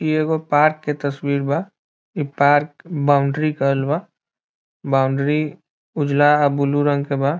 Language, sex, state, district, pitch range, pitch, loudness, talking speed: Bhojpuri, male, Bihar, Saran, 140-155 Hz, 145 Hz, -19 LUFS, 170 wpm